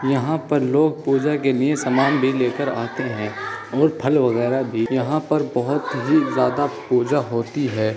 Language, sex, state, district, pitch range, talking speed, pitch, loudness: Hindi, male, Uttar Pradesh, Muzaffarnagar, 125-150 Hz, 175 wpm, 135 Hz, -20 LUFS